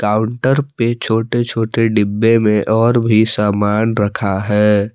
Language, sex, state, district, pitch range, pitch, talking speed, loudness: Hindi, male, Jharkhand, Palamu, 105-115 Hz, 110 Hz, 135 wpm, -15 LUFS